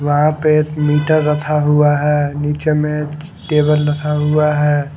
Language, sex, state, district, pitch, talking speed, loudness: Hindi, male, Haryana, Charkhi Dadri, 150 Hz, 145 wpm, -15 LUFS